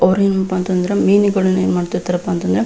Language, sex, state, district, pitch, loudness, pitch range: Kannada, female, Karnataka, Belgaum, 185 Hz, -16 LUFS, 180-195 Hz